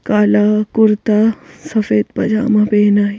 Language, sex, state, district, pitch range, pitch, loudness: Hindi, female, Madhya Pradesh, Bhopal, 210-220 Hz, 210 Hz, -14 LUFS